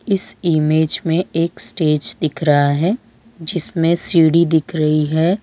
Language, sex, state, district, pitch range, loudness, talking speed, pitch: Hindi, female, Gujarat, Valsad, 155-175 Hz, -16 LUFS, 145 wpm, 160 Hz